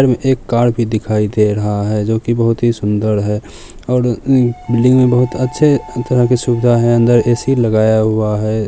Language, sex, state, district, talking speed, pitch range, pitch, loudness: Maithili, male, Bihar, Samastipur, 205 wpm, 110-125 Hz, 120 Hz, -14 LUFS